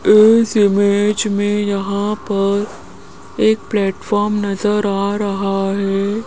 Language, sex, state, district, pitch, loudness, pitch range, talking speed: Hindi, female, Rajasthan, Jaipur, 205 Hz, -16 LUFS, 200-210 Hz, 105 wpm